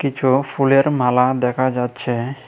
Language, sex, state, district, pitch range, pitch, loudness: Bengali, male, Tripura, West Tripura, 125-135 Hz, 130 Hz, -18 LUFS